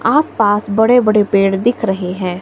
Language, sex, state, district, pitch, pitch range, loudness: Hindi, female, Himachal Pradesh, Shimla, 205 Hz, 195-230 Hz, -14 LUFS